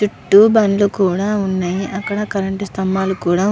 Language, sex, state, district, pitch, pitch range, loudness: Telugu, male, Andhra Pradesh, Visakhapatnam, 195 Hz, 190-205 Hz, -16 LUFS